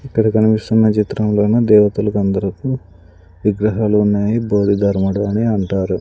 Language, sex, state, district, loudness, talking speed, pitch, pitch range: Telugu, male, Andhra Pradesh, Sri Satya Sai, -16 LUFS, 90 wpm, 105 Hz, 100-110 Hz